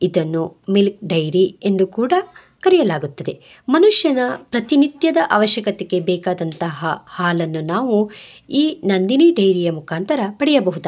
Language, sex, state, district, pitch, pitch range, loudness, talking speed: Kannada, female, Karnataka, Bangalore, 200 Hz, 180-285 Hz, -17 LUFS, 95 wpm